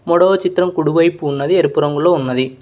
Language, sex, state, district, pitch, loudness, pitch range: Telugu, male, Telangana, Hyderabad, 165 Hz, -15 LUFS, 145-180 Hz